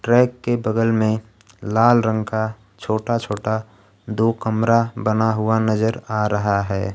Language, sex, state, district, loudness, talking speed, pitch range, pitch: Hindi, male, Bihar, Kaimur, -20 LUFS, 145 wpm, 105-115 Hz, 110 Hz